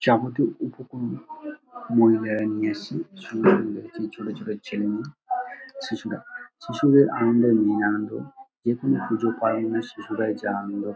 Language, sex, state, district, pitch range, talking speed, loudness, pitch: Bengali, male, West Bengal, Dakshin Dinajpur, 110-160 Hz, 120 wpm, -24 LUFS, 115 Hz